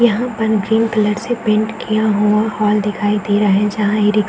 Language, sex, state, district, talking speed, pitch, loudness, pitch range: Hindi, female, Bihar, East Champaran, 210 wpm, 215 Hz, -16 LUFS, 210-220 Hz